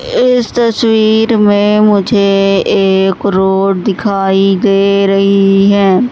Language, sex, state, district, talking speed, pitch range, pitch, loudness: Hindi, female, Madhya Pradesh, Katni, 100 wpm, 195-215 Hz, 200 Hz, -10 LUFS